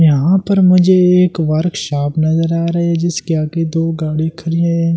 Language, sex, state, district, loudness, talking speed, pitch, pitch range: Hindi, male, Delhi, New Delhi, -14 LUFS, 180 wpm, 165 Hz, 160-170 Hz